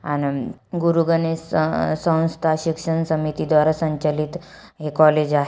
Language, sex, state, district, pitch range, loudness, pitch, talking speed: Marathi, female, Maharashtra, Aurangabad, 150-165 Hz, -20 LUFS, 155 Hz, 120 wpm